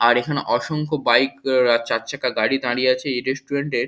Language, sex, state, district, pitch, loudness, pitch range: Bengali, male, West Bengal, Kolkata, 130 Hz, -20 LUFS, 120-140 Hz